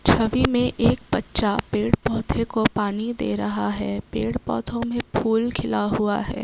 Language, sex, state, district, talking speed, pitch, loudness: Hindi, female, Uttar Pradesh, Varanasi, 170 wpm, 205 Hz, -23 LUFS